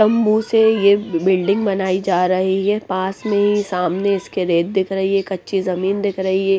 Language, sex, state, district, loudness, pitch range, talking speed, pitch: Hindi, female, Punjab, Pathankot, -18 LUFS, 185-205 Hz, 200 wpm, 195 Hz